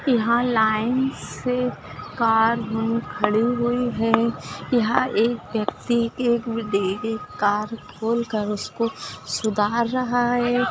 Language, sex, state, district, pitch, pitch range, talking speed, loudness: Hindi, female, Maharashtra, Chandrapur, 230 Hz, 220-240 Hz, 90 wpm, -22 LUFS